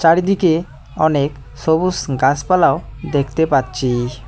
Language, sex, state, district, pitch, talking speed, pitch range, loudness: Bengali, male, West Bengal, Cooch Behar, 145 Hz, 85 wpm, 130-165 Hz, -17 LUFS